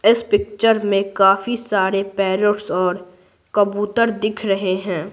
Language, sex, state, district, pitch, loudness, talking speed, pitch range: Hindi, female, Bihar, Patna, 200 Hz, -18 LUFS, 130 wpm, 190-210 Hz